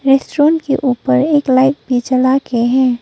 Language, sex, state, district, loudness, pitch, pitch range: Hindi, female, Arunachal Pradesh, Papum Pare, -14 LUFS, 260 Hz, 250-275 Hz